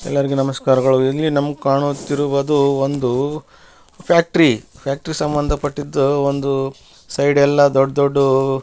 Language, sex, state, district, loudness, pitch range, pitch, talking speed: Kannada, male, Karnataka, Bellary, -17 LUFS, 135-145 Hz, 140 Hz, 110 wpm